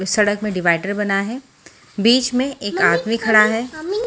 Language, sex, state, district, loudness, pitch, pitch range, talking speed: Hindi, female, Haryana, Charkhi Dadri, -17 LUFS, 215 Hz, 205-250 Hz, 175 wpm